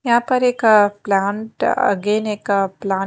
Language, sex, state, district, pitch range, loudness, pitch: Hindi, female, Maharashtra, Mumbai Suburban, 200-235 Hz, -18 LUFS, 210 Hz